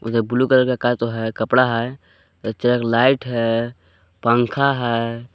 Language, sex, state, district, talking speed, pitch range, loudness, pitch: Hindi, male, Jharkhand, Palamu, 135 wpm, 115-125 Hz, -19 LUFS, 115 Hz